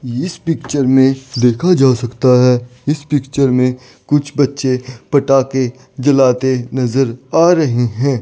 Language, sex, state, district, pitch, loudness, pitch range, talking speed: Hindi, male, Chandigarh, Chandigarh, 130 Hz, -14 LUFS, 125-140 Hz, 130 wpm